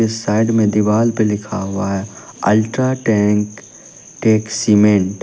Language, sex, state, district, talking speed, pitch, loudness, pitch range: Hindi, male, Uttar Pradesh, Lalitpur, 140 wpm, 105 Hz, -16 LUFS, 105-110 Hz